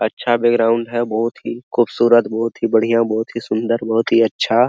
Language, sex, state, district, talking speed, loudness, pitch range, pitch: Hindi, male, Bihar, Araria, 190 wpm, -17 LUFS, 115-120 Hz, 115 Hz